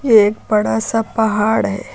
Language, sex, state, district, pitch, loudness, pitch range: Hindi, female, Uttar Pradesh, Lucknow, 220 Hz, -16 LUFS, 210-225 Hz